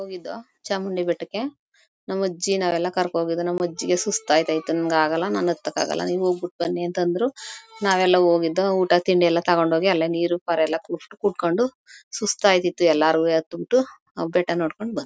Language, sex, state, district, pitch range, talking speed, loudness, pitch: Kannada, female, Karnataka, Mysore, 170-195 Hz, 165 wpm, -22 LUFS, 175 Hz